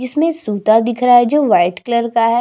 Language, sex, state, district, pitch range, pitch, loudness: Hindi, female, Chhattisgarh, Jashpur, 225-255 Hz, 240 Hz, -14 LUFS